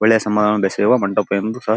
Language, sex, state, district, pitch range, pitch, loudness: Kannada, male, Karnataka, Bellary, 105-110 Hz, 105 Hz, -17 LUFS